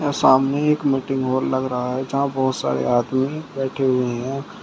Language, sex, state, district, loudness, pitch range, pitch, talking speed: Hindi, male, Uttar Pradesh, Shamli, -21 LUFS, 130-140 Hz, 135 Hz, 195 wpm